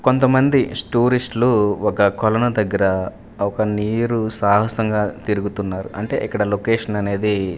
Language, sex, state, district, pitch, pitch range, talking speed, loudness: Telugu, male, Andhra Pradesh, Manyam, 105 Hz, 100-115 Hz, 110 wpm, -19 LUFS